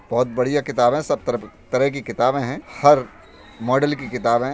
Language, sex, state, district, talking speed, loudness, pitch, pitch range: Hindi, male, Uttar Pradesh, Budaun, 200 wpm, -20 LUFS, 125 Hz, 120-140 Hz